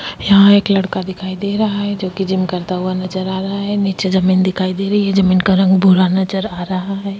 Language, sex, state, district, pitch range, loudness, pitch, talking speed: Hindi, female, Chhattisgarh, Kabirdham, 185-200 Hz, -15 LUFS, 190 Hz, 240 wpm